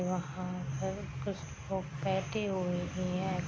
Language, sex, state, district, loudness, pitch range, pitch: Hindi, female, Bihar, Gopalganj, -36 LUFS, 175-190 Hz, 180 Hz